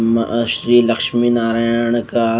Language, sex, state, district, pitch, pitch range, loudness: Hindi, male, Maharashtra, Mumbai Suburban, 115 Hz, 115-120 Hz, -15 LUFS